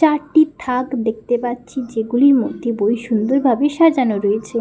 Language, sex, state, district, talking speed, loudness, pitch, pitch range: Bengali, female, West Bengal, Paschim Medinipur, 145 wpm, -17 LUFS, 245 Hz, 230-280 Hz